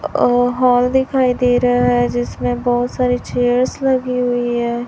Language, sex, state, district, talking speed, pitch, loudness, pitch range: Hindi, male, Chhattisgarh, Raipur, 160 wpm, 245 Hz, -16 LUFS, 245-250 Hz